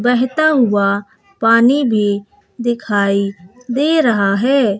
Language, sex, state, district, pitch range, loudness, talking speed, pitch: Hindi, female, Bihar, West Champaran, 200-250 Hz, -15 LUFS, 100 wpm, 225 Hz